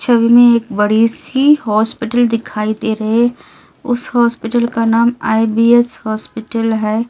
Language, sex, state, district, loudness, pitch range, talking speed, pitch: Hindi, female, Delhi, New Delhi, -14 LUFS, 220-240 Hz, 150 wpm, 230 Hz